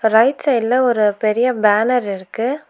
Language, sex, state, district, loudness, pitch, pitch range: Tamil, female, Tamil Nadu, Nilgiris, -16 LUFS, 230 Hz, 215-250 Hz